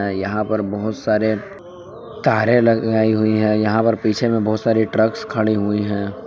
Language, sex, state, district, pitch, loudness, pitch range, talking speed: Hindi, male, Jharkhand, Palamu, 110 Hz, -18 LUFS, 105-115 Hz, 170 wpm